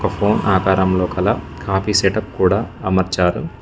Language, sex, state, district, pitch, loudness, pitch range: Telugu, male, Telangana, Mahabubabad, 95 Hz, -17 LUFS, 95-105 Hz